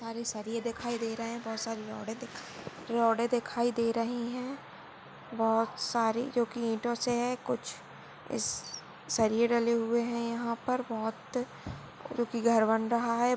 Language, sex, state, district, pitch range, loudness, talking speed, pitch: Hindi, female, Goa, North and South Goa, 225-240 Hz, -32 LUFS, 155 wpm, 235 Hz